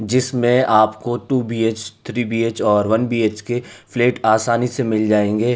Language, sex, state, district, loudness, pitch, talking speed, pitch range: Hindi, male, Uttar Pradesh, Hamirpur, -18 LUFS, 115 Hz, 160 wpm, 110-120 Hz